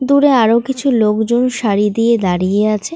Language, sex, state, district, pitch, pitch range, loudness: Bengali, female, West Bengal, North 24 Parganas, 225 Hz, 210-250 Hz, -14 LUFS